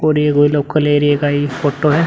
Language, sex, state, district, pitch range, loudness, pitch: Hindi, male, Uttar Pradesh, Muzaffarnagar, 145-150 Hz, -14 LUFS, 145 Hz